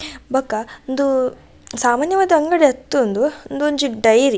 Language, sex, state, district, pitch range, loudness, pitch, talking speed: Tulu, female, Karnataka, Dakshina Kannada, 250-295 Hz, -18 LUFS, 270 Hz, 125 wpm